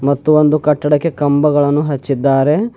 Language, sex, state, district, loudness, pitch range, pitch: Kannada, male, Karnataka, Bidar, -14 LUFS, 140-150 Hz, 145 Hz